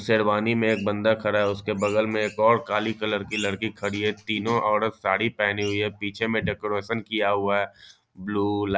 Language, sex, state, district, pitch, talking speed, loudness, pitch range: Hindi, male, Bihar, East Champaran, 105 Hz, 205 wpm, -25 LUFS, 100-110 Hz